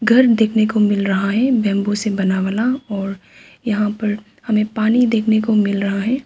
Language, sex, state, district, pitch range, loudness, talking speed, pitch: Hindi, female, Arunachal Pradesh, Papum Pare, 200-225 Hz, -17 LUFS, 190 wpm, 215 Hz